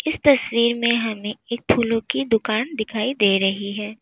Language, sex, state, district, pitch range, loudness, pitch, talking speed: Hindi, female, Uttar Pradesh, Lalitpur, 210-235 Hz, -21 LUFS, 225 Hz, 180 wpm